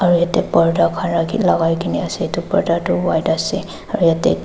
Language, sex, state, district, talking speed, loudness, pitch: Nagamese, female, Nagaland, Dimapur, 200 wpm, -17 LUFS, 165 Hz